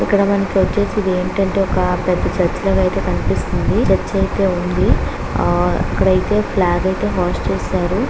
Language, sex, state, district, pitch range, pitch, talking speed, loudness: Telugu, female, Andhra Pradesh, Visakhapatnam, 185-200 Hz, 195 Hz, 150 wpm, -17 LUFS